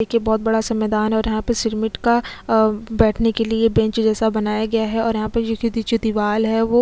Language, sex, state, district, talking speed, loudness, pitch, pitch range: Hindi, female, Chhattisgarh, Sukma, 220 wpm, -19 LUFS, 225 Hz, 220-225 Hz